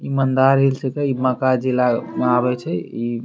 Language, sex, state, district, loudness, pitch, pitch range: Angika, male, Bihar, Bhagalpur, -19 LUFS, 130 Hz, 125-135 Hz